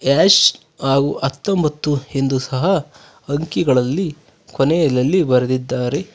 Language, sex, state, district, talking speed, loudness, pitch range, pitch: Kannada, male, Karnataka, Bangalore, 80 wpm, -17 LUFS, 130-160 Hz, 140 Hz